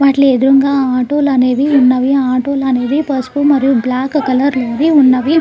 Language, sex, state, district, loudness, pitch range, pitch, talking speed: Telugu, female, Andhra Pradesh, Krishna, -12 LUFS, 255-280 Hz, 270 Hz, 145 wpm